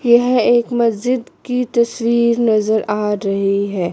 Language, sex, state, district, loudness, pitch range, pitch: Hindi, female, Chandigarh, Chandigarh, -16 LUFS, 210-240 Hz, 235 Hz